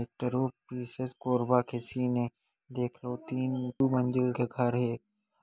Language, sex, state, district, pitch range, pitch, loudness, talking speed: Hindi, male, Chhattisgarh, Korba, 120-130 Hz, 125 Hz, -31 LUFS, 155 wpm